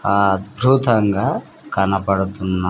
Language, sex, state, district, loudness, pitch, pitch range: Telugu, male, Andhra Pradesh, Sri Satya Sai, -18 LUFS, 100 Hz, 95-105 Hz